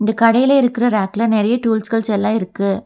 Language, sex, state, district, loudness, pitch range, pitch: Tamil, female, Tamil Nadu, Nilgiris, -16 LUFS, 210-235 Hz, 225 Hz